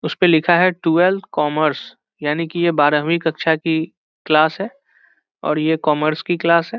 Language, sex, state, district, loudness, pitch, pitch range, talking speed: Hindi, male, Bihar, Saran, -17 LUFS, 165 Hz, 155-175 Hz, 175 wpm